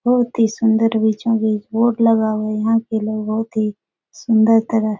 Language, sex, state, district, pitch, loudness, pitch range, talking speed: Hindi, female, Bihar, Jahanabad, 220 Hz, -17 LUFS, 215-225 Hz, 190 wpm